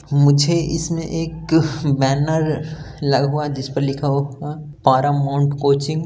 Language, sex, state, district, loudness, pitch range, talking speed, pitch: Hindi, male, Bihar, Gaya, -19 LUFS, 140-155 Hz, 150 wpm, 145 Hz